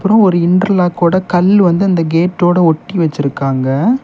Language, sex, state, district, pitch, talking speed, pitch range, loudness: Tamil, male, Tamil Nadu, Kanyakumari, 175 Hz, 135 wpm, 165-190 Hz, -12 LUFS